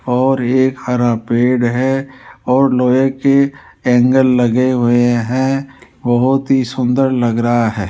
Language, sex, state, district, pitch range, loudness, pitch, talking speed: Hindi, male, Rajasthan, Jaipur, 120-135 Hz, -14 LUFS, 125 Hz, 135 wpm